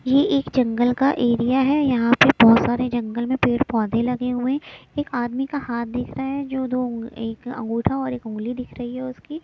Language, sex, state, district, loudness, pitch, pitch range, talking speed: Hindi, female, Chhattisgarh, Raipur, -21 LUFS, 245 Hz, 235-265 Hz, 215 wpm